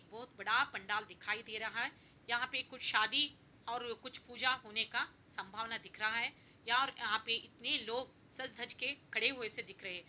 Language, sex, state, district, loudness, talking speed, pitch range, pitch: Hindi, female, Bihar, Jahanabad, -36 LUFS, 195 wpm, 215-255 Hz, 235 Hz